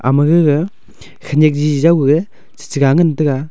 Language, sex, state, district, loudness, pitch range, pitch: Wancho, male, Arunachal Pradesh, Longding, -13 LUFS, 145-165 Hz, 150 Hz